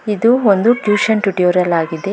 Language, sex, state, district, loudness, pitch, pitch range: Kannada, female, Karnataka, Bangalore, -14 LUFS, 205 Hz, 180-220 Hz